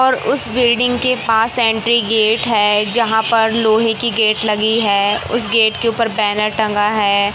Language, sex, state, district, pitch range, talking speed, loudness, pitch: Hindi, male, Madhya Pradesh, Katni, 215-235 Hz, 180 wpm, -14 LUFS, 225 Hz